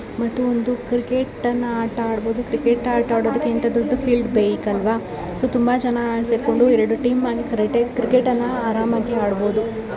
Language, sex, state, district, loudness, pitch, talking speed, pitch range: Kannada, female, Karnataka, Shimoga, -20 LUFS, 235 Hz, 145 wpm, 225-245 Hz